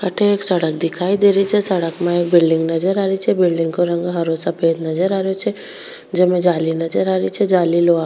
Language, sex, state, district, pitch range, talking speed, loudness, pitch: Rajasthani, female, Rajasthan, Churu, 165-195 Hz, 255 wpm, -17 LUFS, 175 Hz